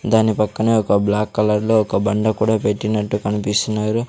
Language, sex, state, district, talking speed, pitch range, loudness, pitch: Telugu, male, Andhra Pradesh, Sri Satya Sai, 145 wpm, 105-110 Hz, -18 LUFS, 105 Hz